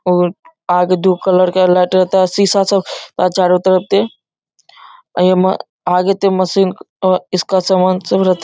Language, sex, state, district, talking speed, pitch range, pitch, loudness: Hindi, male, Bihar, Darbhanga, 90 wpm, 180-195 Hz, 185 Hz, -14 LUFS